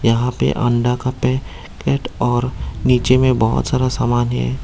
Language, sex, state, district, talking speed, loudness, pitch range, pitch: Hindi, male, Tripura, Dhalai, 155 wpm, -18 LUFS, 120-130 Hz, 125 Hz